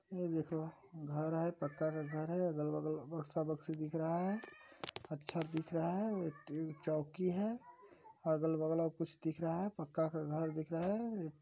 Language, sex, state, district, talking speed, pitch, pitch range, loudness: Hindi, male, Chhattisgarh, Balrampur, 165 wpm, 160 Hz, 155-175 Hz, -40 LUFS